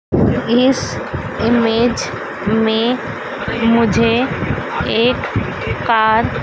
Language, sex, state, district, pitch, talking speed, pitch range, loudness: Hindi, female, Madhya Pradesh, Dhar, 230 Hz, 65 wpm, 225-240 Hz, -16 LUFS